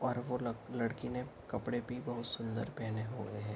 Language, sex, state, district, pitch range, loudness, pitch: Hindi, male, Bihar, Araria, 115-125 Hz, -40 LUFS, 120 Hz